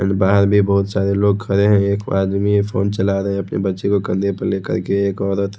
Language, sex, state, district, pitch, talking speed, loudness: Hindi, male, Odisha, Khordha, 100 Hz, 245 wpm, -17 LUFS